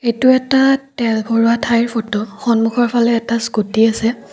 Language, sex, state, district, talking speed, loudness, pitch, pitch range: Assamese, female, Assam, Kamrup Metropolitan, 140 wpm, -15 LUFS, 235 Hz, 225-240 Hz